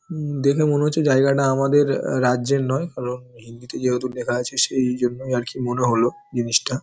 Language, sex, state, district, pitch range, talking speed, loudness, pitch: Bengali, male, West Bengal, Paschim Medinipur, 125-140 Hz, 175 wpm, -21 LUFS, 130 Hz